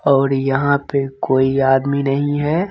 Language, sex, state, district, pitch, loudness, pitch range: Hindi, male, Bihar, Begusarai, 140 Hz, -17 LUFS, 135-145 Hz